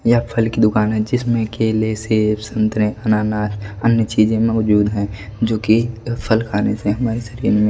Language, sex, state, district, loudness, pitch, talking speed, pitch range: Hindi, male, Delhi, New Delhi, -18 LUFS, 110 Hz, 170 wpm, 105-115 Hz